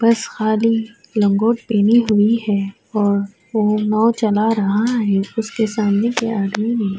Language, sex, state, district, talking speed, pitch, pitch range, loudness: Urdu, female, Uttar Pradesh, Budaun, 145 wpm, 215 Hz, 205-230 Hz, -18 LUFS